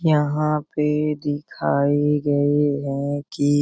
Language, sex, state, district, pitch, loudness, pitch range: Hindi, male, Bihar, Araria, 145 Hz, -21 LUFS, 145-150 Hz